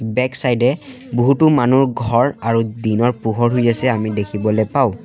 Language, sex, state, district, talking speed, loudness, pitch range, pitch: Assamese, male, Assam, Sonitpur, 165 wpm, -17 LUFS, 110-130 Hz, 120 Hz